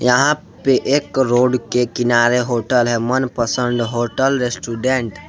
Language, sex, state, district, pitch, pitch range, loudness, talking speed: Hindi, male, Jharkhand, Palamu, 125 Hz, 120-130 Hz, -17 LUFS, 135 wpm